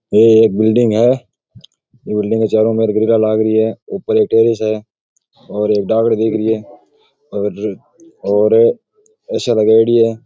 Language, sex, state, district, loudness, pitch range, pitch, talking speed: Rajasthani, male, Rajasthan, Nagaur, -14 LUFS, 110-115 Hz, 110 Hz, 150 wpm